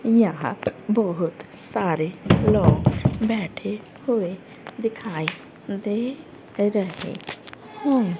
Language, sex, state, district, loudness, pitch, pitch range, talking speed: Hindi, female, Haryana, Rohtak, -24 LUFS, 205 Hz, 175-225 Hz, 75 wpm